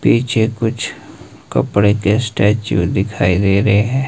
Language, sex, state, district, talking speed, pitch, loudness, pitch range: Hindi, male, Himachal Pradesh, Shimla, 130 wpm, 105 Hz, -16 LUFS, 100-115 Hz